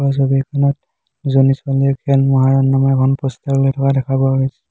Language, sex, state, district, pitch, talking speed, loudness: Assamese, male, Assam, Hailakandi, 135 Hz, 180 wpm, -15 LUFS